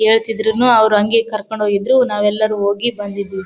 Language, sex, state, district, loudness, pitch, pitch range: Kannada, female, Karnataka, Bellary, -15 LUFS, 215 Hz, 205-225 Hz